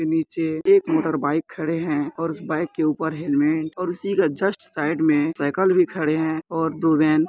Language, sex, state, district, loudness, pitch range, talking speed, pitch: Hindi, male, Bihar, Muzaffarpur, -22 LUFS, 155-165 Hz, 215 wpm, 160 Hz